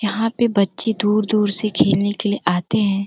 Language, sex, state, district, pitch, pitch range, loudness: Hindi, female, Uttar Pradesh, Gorakhpur, 210 Hz, 200-215 Hz, -17 LUFS